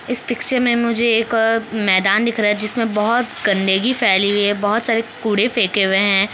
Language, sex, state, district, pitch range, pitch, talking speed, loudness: Hindi, female, Bihar, Kishanganj, 205-235 Hz, 225 Hz, 200 wpm, -17 LUFS